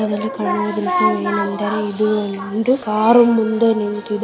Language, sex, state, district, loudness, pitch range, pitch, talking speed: Kannada, female, Karnataka, Raichur, -17 LUFS, 205-220 Hz, 215 Hz, 85 wpm